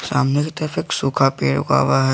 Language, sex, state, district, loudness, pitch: Hindi, male, Jharkhand, Garhwa, -19 LUFS, 135 Hz